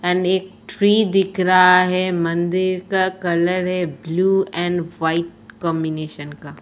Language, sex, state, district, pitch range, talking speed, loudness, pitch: Hindi, female, Uttar Pradesh, Etah, 170-185 Hz, 135 wpm, -18 LUFS, 180 Hz